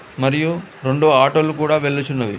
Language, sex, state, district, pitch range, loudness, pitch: Telugu, male, Telangana, Hyderabad, 135-155 Hz, -17 LUFS, 145 Hz